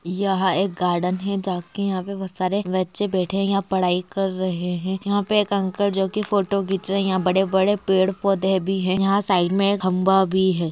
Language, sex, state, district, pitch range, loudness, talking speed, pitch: Hindi, female, Maharashtra, Dhule, 185-195 Hz, -21 LUFS, 230 wpm, 190 Hz